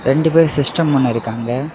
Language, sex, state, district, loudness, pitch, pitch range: Tamil, male, Tamil Nadu, Kanyakumari, -15 LUFS, 140 Hz, 125-160 Hz